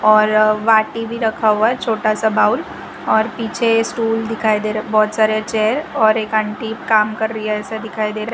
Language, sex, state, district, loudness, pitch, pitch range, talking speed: Hindi, female, Gujarat, Valsad, -17 LUFS, 220 Hz, 215-225 Hz, 215 wpm